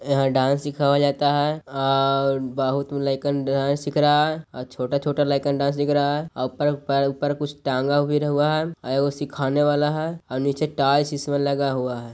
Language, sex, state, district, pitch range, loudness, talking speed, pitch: Magahi, male, Bihar, Jahanabad, 135-145 Hz, -22 LUFS, 195 wpm, 140 Hz